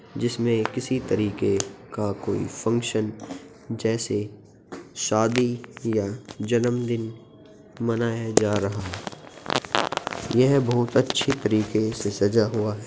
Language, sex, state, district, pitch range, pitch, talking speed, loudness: Hindi, male, Uttar Pradesh, Jyotiba Phule Nagar, 105-120 Hz, 115 Hz, 105 wpm, -25 LUFS